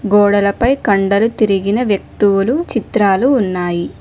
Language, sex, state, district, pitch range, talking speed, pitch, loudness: Telugu, female, Telangana, Mahabubabad, 200-230 Hz, 90 wpm, 205 Hz, -14 LUFS